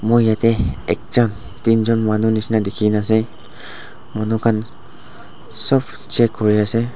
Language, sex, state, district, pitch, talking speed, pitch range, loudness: Nagamese, male, Nagaland, Dimapur, 110 Hz, 110 wpm, 105-115 Hz, -17 LUFS